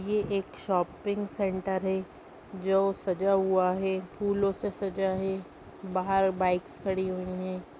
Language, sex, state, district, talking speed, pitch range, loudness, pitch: Hindi, female, Bihar, Gopalganj, 140 wpm, 185-195 Hz, -29 LUFS, 190 Hz